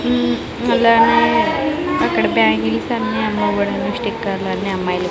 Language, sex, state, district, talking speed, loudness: Telugu, female, Andhra Pradesh, Sri Satya Sai, 105 wpm, -17 LUFS